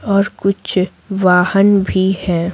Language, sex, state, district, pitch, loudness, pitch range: Hindi, female, Bihar, Patna, 190 Hz, -15 LUFS, 185-195 Hz